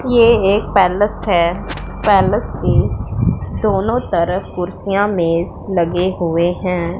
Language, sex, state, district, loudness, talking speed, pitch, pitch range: Hindi, female, Punjab, Pathankot, -16 LUFS, 110 wpm, 185 Hz, 175-205 Hz